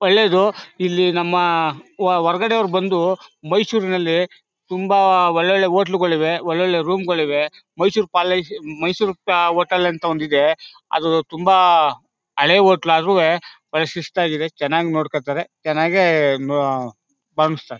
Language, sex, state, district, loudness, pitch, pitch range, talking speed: Kannada, male, Karnataka, Mysore, -18 LUFS, 175 Hz, 160-190 Hz, 100 wpm